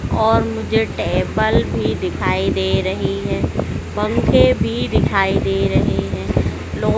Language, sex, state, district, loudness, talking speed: Hindi, female, Madhya Pradesh, Dhar, -18 LUFS, 130 wpm